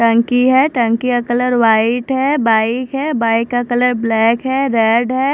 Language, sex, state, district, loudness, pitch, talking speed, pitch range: Hindi, female, Odisha, Khordha, -14 LUFS, 245 Hz, 180 wpm, 230-260 Hz